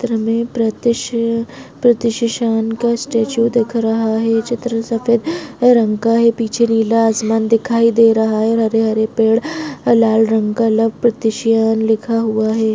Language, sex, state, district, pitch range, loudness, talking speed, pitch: Hindi, female, Maharashtra, Aurangabad, 225-235 Hz, -15 LUFS, 125 wpm, 230 Hz